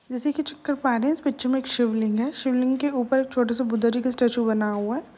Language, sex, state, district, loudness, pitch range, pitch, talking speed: Hindi, female, Uttar Pradesh, Jalaun, -24 LUFS, 235-270 Hz, 255 Hz, 245 wpm